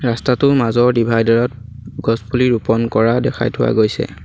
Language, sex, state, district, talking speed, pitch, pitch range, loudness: Assamese, male, Assam, Sonitpur, 125 wpm, 120 Hz, 115-125 Hz, -16 LUFS